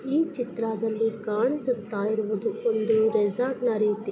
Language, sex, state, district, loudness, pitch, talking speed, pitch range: Kannada, female, Karnataka, Chamarajanagar, -26 LUFS, 225 Hz, 115 wpm, 215-250 Hz